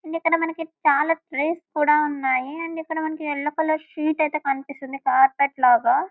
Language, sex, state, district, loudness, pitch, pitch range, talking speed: Telugu, female, Telangana, Karimnagar, -22 LUFS, 310 Hz, 280-325 Hz, 175 wpm